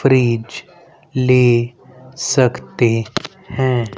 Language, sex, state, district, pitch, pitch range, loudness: Hindi, male, Haryana, Rohtak, 130 Hz, 120-130 Hz, -17 LUFS